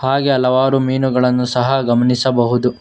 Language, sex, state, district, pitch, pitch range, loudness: Kannada, male, Karnataka, Bangalore, 125 Hz, 125-130 Hz, -15 LUFS